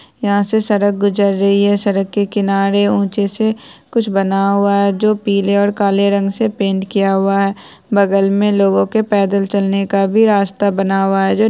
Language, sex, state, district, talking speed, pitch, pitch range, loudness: Hindi, female, Bihar, Araria, 210 wpm, 200 Hz, 195-205 Hz, -15 LUFS